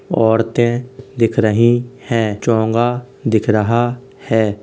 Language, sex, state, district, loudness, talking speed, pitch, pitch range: Hindi, male, Uttar Pradesh, Hamirpur, -16 LUFS, 105 wpm, 115 Hz, 110-120 Hz